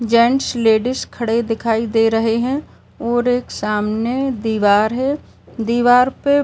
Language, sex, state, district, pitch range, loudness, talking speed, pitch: Hindi, female, Uttar Pradesh, Varanasi, 225-250 Hz, -17 LUFS, 140 wpm, 235 Hz